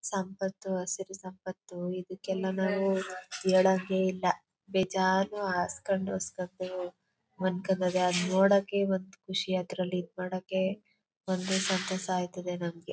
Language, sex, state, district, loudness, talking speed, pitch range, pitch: Kannada, female, Karnataka, Chamarajanagar, -31 LUFS, 90 wpm, 185-190 Hz, 185 Hz